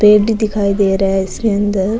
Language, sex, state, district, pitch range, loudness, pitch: Rajasthani, female, Rajasthan, Nagaur, 195-210 Hz, -14 LUFS, 205 Hz